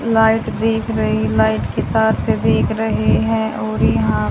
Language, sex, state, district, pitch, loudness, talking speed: Hindi, female, Haryana, Charkhi Dadri, 110 Hz, -17 LUFS, 165 wpm